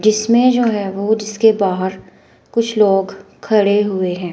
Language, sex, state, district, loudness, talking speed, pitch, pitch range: Hindi, female, Himachal Pradesh, Shimla, -16 LUFS, 155 wpm, 210 Hz, 195-220 Hz